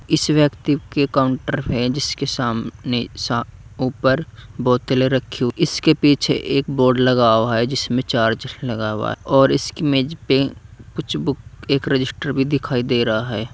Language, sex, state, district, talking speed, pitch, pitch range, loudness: Hindi, male, Uttar Pradesh, Saharanpur, 160 wpm, 130 Hz, 120-140 Hz, -19 LUFS